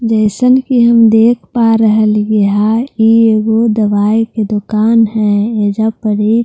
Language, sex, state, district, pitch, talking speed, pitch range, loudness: Hindi, female, Bihar, Katihar, 220 Hz, 175 wpm, 215-230 Hz, -11 LUFS